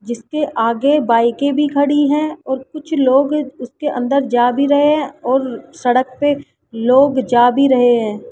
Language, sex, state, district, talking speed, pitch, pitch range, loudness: Hindi, female, Rajasthan, Jaipur, 165 wpm, 270 Hz, 245-290 Hz, -15 LUFS